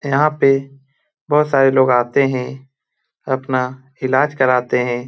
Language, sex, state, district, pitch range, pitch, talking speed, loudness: Hindi, male, Bihar, Lakhisarai, 130-140 Hz, 135 Hz, 130 wpm, -16 LUFS